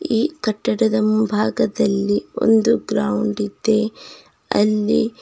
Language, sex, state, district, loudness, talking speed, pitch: Kannada, female, Karnataka, Bidar, -19 LUFS, 80 wpm, 205 Hz